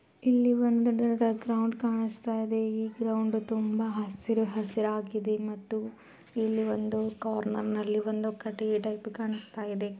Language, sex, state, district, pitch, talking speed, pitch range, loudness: Kannada, female, Karnataka, Bijapur, 220 Hz, 115 wpm, 215-225 Hz, -30 LUFS